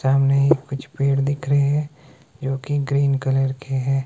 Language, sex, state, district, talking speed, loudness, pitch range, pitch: Hindi, male, Himachal Pradesh, Shimla, 180 wpm, -21 LUFS, 135-140 Hz, 135 Hz